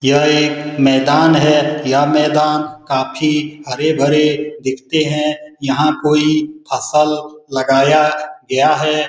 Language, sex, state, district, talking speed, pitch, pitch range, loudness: Hindi, male, Bihar, Lakhisarai, 105 wpm, 150 Hz, 140-150 Hz, -15 LUFS